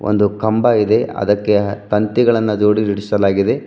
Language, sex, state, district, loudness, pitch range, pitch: Kannada, male, Karnataka, Bidar, -15 LUFS, 100-110 Hz, 105 Hz